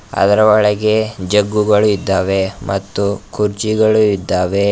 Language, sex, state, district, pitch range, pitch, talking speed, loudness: Kannada, male, Karnataka, Bidar, 100-105 Hz, 100 Hz, 90 wpm, -15 LUFS